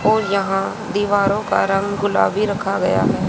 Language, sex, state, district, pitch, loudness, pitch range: Hindi, female, Haryana, Jhajjar, 200 Hz, -18 LUFS, 195-210 Hz